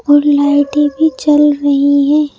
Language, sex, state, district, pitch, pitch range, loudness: Hindi, female, Madhya Pradesh, Bhopal, 290 Hz, 285-295 Hz, -11 LUFS